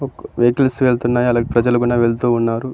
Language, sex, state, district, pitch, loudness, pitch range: Telugu, male, Andhra Pradesh, Anantapur, 120 Hz, -16 LUFS, 120-125 Hz